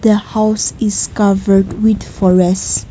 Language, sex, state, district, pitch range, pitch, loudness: English, female, Nagaland, Kohima, 185-215 Hz, 200 Hz, -14 LUFS